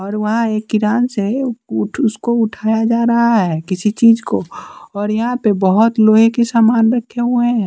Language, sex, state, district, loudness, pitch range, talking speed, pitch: Hindi, male, Bihar, West Champaran, -15 LUFS, 210-235 Hz, 195 wpm, 225 Hz